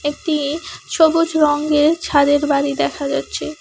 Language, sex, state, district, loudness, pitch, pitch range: Bengali, female, West Bengal, Alipurduar, -17 LUFS, 295 Hz, 290-320 Hz